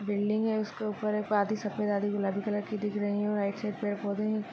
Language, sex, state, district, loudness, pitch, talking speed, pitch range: Hindi, female, Maharashtra, Chandrapur, -31 LUFS, 210 Hz, 240 wpm, 205-210 Hz